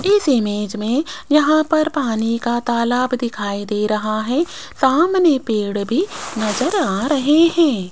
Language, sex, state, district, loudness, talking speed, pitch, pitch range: Hindi, female, Rajasthan, Jaipur, -18 LUFS, 145 wpm, 250 Hz, 215-310 Hz